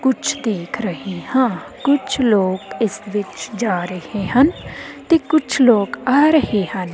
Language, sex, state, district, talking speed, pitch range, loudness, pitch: Punjabi, female, Punjab, Kapurthala, 145 wpm, 200-275 Hz, -18 LUFS, 230 Hz